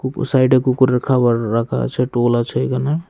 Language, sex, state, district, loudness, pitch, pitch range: Bengali, male, Tripura, West Tripura, -17 LUFS, 130 Hz, 120-130 Hz